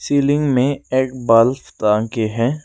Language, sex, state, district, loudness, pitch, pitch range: Hindi, male, Arunachal Pradesh, Lower Dibang Valley, -17 LUFS, 125 Hz, 115-140 Hz